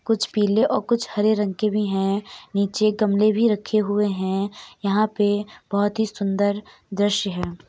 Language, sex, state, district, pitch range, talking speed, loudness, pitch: Hindi, female, Uttar Pradesh, Etah, 200-215 Hz, 170 wpm, -22 LUFS, 205 Hz